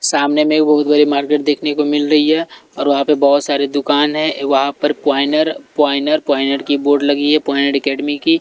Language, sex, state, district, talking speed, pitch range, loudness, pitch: Hindi, male, Delhi, New Delhi, 200 wpm, 140-150 Hz, -15 LUFS, 145 Hz